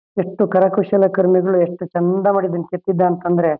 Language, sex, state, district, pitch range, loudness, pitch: Kannada, male, Karnataka, Shimoga, 175-190 Hz, -17 LUFS, 185 Hz